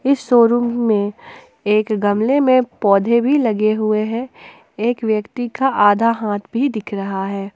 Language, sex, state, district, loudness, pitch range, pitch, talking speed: Hindi, female, Jharkhand, Ranchi, -17 LUFS, 210-245 Hz, 225 Hz, 160 wpm